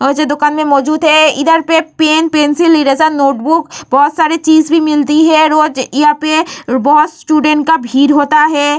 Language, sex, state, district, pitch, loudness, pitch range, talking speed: Hindi, female, Bihar, Vaishali, 305 Hz, -10 LUFS, 290-315 Hz, 175 wpm